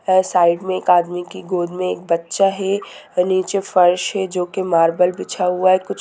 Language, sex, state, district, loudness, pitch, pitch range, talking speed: Hindi, female, Bihar, Sitamarhi, -18 LUFS, 185 Hz, 175-190 Hz, 210 wpm